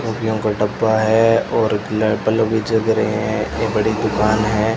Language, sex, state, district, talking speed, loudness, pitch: Hindi, male, Rajasthan, Bikaner, 175 wpm, -18 LUFS, 110 Hz